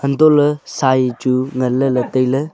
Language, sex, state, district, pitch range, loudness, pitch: Wancho, male, Arunachal Pradesh, Longding, 130-140 Hz, -16 LUFS, 130 Hz